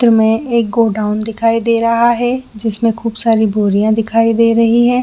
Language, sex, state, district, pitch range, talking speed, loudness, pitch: Hindi, female, Jharkhand, Jamtara, 220-235 Hz, 180 wpm, -13 LUFS, 230 Hz